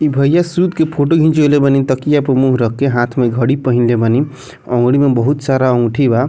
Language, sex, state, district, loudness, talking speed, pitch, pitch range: Bhojpuri, male, Bihar, Muzaffarpur, -13 LUFS, 210 wpm, 135 Hz, 125-145 Hz